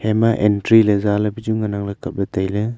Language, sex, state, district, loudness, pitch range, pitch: Wancho, male, Arunachal Pradesh, Longding, -18 LUFS, 100-110 Hz, 105 Hz